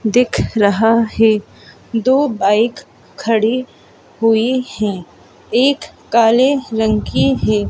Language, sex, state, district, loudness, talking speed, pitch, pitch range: Hindi, male, Madhya Pradesh, Bhopal, -15 LUFS, 100 wpm, 225 Hz, 210-250 Hz